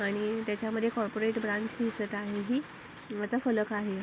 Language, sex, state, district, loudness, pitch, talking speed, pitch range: Marathi, female, Maharashtra, Pune, -32 LUFS, 215 Hz, 150 wpm, 205-225 Hz